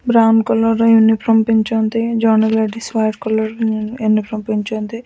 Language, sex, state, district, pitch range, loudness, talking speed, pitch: Odia, female, Odisha, Nuapada, 220-225 Hz, -15 LUFS, 130 wpm, 220 Hz